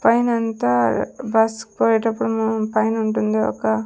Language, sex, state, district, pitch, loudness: Telugu, female, Andhra Pradesh, Sri Satya Sai, 220 Hz, -20 LUFS